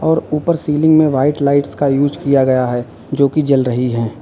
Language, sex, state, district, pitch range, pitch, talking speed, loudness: Hindi, male, Uttar Pradesh, Lalitpur, 130-150 Hz, 140 Hz, 225 wpm, -15 LUFS